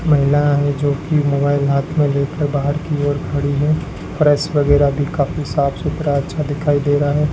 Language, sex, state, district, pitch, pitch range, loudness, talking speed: Hindi, male, Rajasthan, Bikaner, 145 Hz, 140-150 Hz, -17 LUFS, 190 wpm